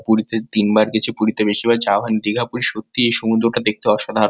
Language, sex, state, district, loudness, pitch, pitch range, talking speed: Bengali, male, West Bengal, Kolkata, -17 LUFS, 110 Hz, 110-115 Hz, 235 wpm